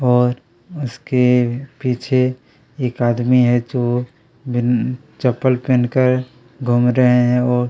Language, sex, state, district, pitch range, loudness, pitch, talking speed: Hindi, male, Chhattisgarh, Kabirdham, 120-130 Hz, -17 LUFS, 125 Hz, 115 wpm